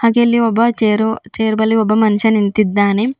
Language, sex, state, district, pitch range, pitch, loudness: Kannada, female, Karnataka, Bidar, 215-230 Hz, 220 Hz, -14 LUFS